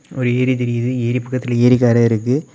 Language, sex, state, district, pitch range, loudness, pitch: Tamil, male, Tamil Nadu, Kanyakumari, 120-125 Hz, -16 LUFS, 125 Hz